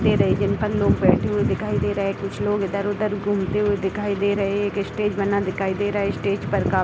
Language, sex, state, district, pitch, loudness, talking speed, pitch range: Hindi, female, Bihar, Gopalganj, 200 Hz, -22 LUFS, 270 wpm, 195-205 Hz